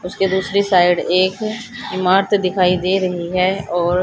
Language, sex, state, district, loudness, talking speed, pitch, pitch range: Hindi, female, Haryana, Charkhi Dadri, -17 LUFS, 150 wpm, 185 Hz, 180-195 Hz